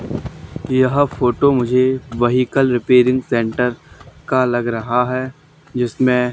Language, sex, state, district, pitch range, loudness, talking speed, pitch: Hindi, male, Haryana, Charkhi Dadri, 125-130 Hz, -17 LUFS, 105 wpm, 125 Hz